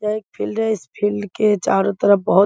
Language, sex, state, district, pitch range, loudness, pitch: Hindi, female, Bihar, Bhagalpur, 200-215 Hz, -19 LUFS, 205 Hz